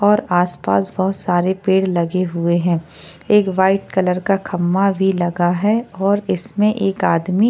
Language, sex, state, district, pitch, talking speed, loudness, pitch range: Hindi, female, Maharashtra, Chandrapur, 190 Hz, 170 wpm, -17 LUFS, 175-195 Hz